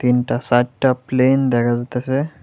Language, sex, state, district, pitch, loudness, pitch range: Bengali, female, Tripura, West Tripura, 125 Hz, -18 LUFS, 120-130 Hz